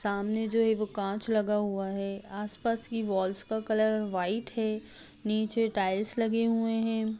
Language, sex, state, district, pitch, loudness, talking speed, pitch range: Hindi, female, Bihar, Darbhanga, 215 Hz, -30 LUFS, 165 wpm, 200-225 Hz